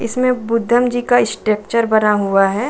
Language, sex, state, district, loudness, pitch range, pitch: Hindi, female, Bihar, Saran, -16 LUFS, 210-245 Hz, 230 Hz